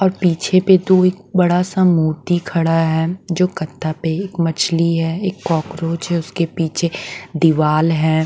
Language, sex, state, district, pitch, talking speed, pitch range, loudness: Hindi, female, Bihar, West Champaran, 170 Hz, 165 wpm, 160-180 Hz, -17 LUFS